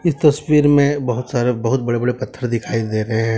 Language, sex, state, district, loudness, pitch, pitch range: Hindi, male, Jharkhand, Deoghar, -18 LUFS, 125 Hz, 115-145 Hz